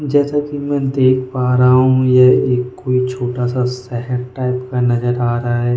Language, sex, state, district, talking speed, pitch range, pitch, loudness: Hindi, male, Goa, North and South Goa, 195 wpm, 125-130 Hz, 125 Hz, -15 LUFS